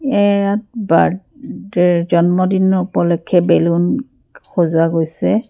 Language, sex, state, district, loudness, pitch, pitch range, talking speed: Assamese, female, Assam, Kamrup Metropolitan, -15 LUFS, 185 Hz, 170-200 Hz, 75 wpm